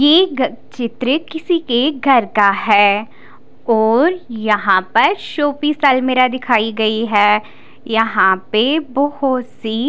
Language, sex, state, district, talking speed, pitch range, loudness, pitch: Hindi, female, Odisha, Khordha, 110 wpm, 220-285 Hz, -15 LUFS, 245 Hz